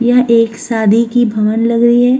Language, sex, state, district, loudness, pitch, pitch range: Hindi, female, Uttar Pradesh, Muzaffarnagar, -12 LUFS, 235 Hz, 225-240 Hz